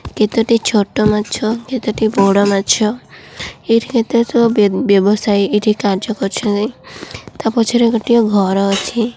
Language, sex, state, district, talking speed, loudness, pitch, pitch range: Odia, female, Odisha, Khordha, 110 wpm, -14 LUFS, 215 Hz, 205-230 Hz